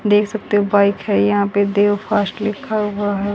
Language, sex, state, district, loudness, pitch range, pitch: Hindi, female, Haryana, Jhajjar, -17 LUFS, 200-210 Hz, 205 Hz